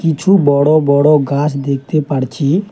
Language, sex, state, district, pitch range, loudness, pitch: Bengali, male, West Bengal, Alipurduar, 140-155 Hz, -13 LUFS, 145 Hz